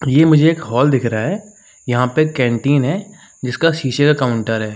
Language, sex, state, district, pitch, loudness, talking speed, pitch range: Hindi, male, Uttar Pradesh, Jalaun, 140 Hz, -16 LUFS, 215 wpm, 125-160 Hz